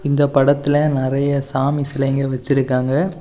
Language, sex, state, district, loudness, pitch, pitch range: Tamil, male, Tamil Nadu, Kanyakumari, -18 LUFS, 140 Hz, 135-145 Hz